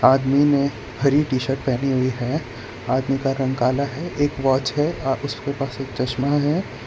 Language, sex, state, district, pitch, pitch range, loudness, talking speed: Hindi, male, Gujarat, Valsad, 135 Hz, 130-140 Hz, -21 LUFS, 190 wpm